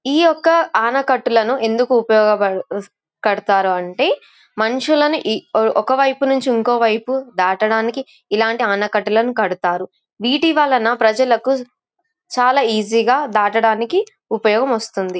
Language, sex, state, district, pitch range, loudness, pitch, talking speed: Telugu, female, Andhra Pradesh, Anantapur, 215-270 Hz, -16 LUFS, 230 Hz, 110 wpm